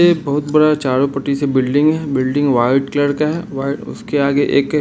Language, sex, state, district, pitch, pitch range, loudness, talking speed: Hindi, male, Bihar, Sitamarhi, 140 Hz, 135-150 Hz, -16 LUFS, 210 wpm